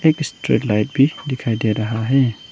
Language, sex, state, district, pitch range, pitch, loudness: Hindi, male, Arunachal Pradesh, Longding, 110-135 Hz, 125 Hz, -19 LUFS